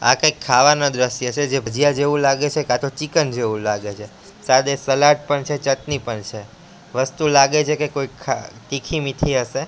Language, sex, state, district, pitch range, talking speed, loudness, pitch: Gujarati, male, Gujarat, Gandhinagar, 125-150 Hz, 200 wpm, -19 LUFS, 140 Hz